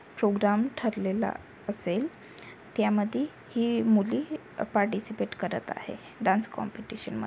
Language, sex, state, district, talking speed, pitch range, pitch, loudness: Marathi, female, Maharashtra, Aurangabad, 100 wpm, 205-230 Hz, 220 Hz, -29 LUFS